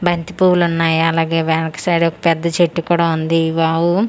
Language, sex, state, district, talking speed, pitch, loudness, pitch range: Telugu, female, Andhra Pradesh, Manyam, 205 wpm, 165 Hz, -16 LUFS, 165-175 Hz